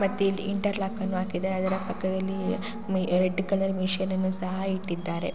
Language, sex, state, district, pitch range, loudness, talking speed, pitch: Kannada, female, Karnataka, Shimoga, 185-195 Hz, -28 LUFS, 135 wpm, 190 Hz